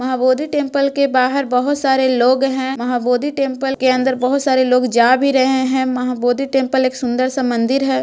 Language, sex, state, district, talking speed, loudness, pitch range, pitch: Magahi, female, Bihar, Gaya, 210 wpm, -16 LUFS, 250-270 Hz, 260 Hz